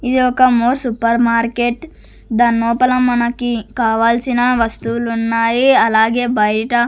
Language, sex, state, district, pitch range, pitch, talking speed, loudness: Telugu, female, Andhra Pradesh, Sri Satya Sai, 230-245 Hz, 235 Hz, 105 wpm, -15 LUFS